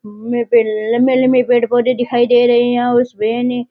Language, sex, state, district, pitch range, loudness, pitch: Rajasthani, male, Rajasthan, Nagaur, 235-245 Hz, -14 LUFS, 245 Hz